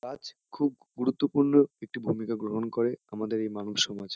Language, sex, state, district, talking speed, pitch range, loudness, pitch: Bengali, male, West Bengal, Kolkata, 160 wpm, 105-135 Hz, -29 LUFS, 115 Hz